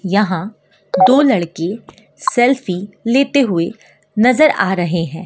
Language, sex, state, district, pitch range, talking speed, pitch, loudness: Hindi, female, Madhya Pradesh, Dhar, 180-255 Hz, 115 wpm, 200 Hz, -15 LUFS